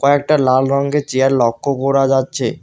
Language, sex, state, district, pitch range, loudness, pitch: Bengali, male, West Bengal, Alipurduar, 130-140 Hz, -15 LUFS, 135 Hz